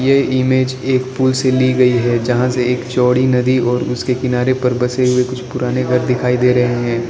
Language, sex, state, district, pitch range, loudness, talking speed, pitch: Hindi, male, Arunachal Pradesh, Lower Dibang Valley, 125-130 Hz, -15 LUFS, 220 wpm, 125 Hz